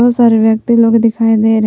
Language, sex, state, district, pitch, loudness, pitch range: Hindi, female, Jharkhand, Palamu, 225 Hz, -10 LUFS, 220-235 Hz